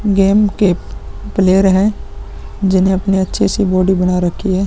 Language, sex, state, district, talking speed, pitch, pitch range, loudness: Hindi, male, Uttar Pradesh, Muzaffarnagar, 155 wpm, 190 Hz, 185-195 Hz, -14 LUFS